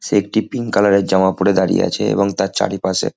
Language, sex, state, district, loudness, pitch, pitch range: Bengali, male, West Bengal, Kolkata, -16 LUFS, 100 Hz, 95-105 Hz